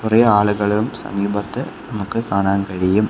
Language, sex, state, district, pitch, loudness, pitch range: Malayalam, male, Kerala, Kollam, 105 Hz, -19 LUFS, 100-105 Hz